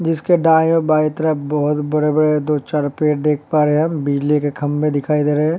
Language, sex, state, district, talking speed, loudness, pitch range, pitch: Hindi, male, Uttar Pradesh, Varanasi, 235 wpm, -17 LUFS, 150-155 Hz, 150 Hz